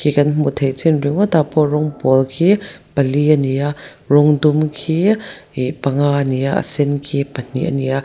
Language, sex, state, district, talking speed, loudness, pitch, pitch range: Mizo, female, Mizoram, Aizawl, 210 wpm, -16 LUFS, 145 Hz, 140-155 Hz